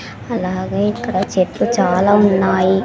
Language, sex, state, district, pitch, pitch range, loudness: Telugu, female, Andhra Pradesh, Sri Satya Sai, 190 Hz, 185-200 Hz, -16 LUFS